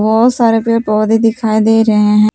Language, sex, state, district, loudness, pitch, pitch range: Hindi, female, Jharkhand, Palamu, -11 LUFS, 220 Hz, 215-225 Hz